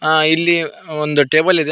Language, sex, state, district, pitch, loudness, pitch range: Kannada, male, Karnataka, Koppal, 155 Hz, -15 LUFS, 155-165 Hz